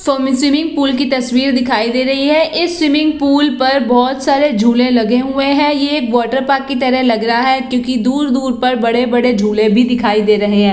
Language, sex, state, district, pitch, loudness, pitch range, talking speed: Hindi, female, Bihar, Jahanabad, 260 Hz, -13 LUFS, 245-280 Hz, 205 wpm